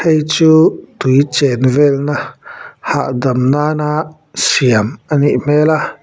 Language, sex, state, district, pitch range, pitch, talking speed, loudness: Mizo, male, Mizoram, Aizawl, 130-155 Hz, 145 Hz, 100 wpm, -13 LUFS